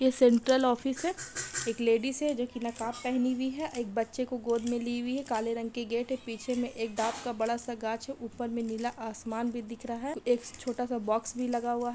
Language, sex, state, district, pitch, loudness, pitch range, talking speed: Hindi, female, Jharkhand, Sahebganj, 240 Hz, -32 LUFS, 230-250 Hz, 260 wpm